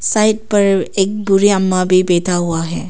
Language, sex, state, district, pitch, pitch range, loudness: Hindi, female, Arunachal Pradesh, Papum Pare, 195 Hz, 185-205 Hz, -14 LUFS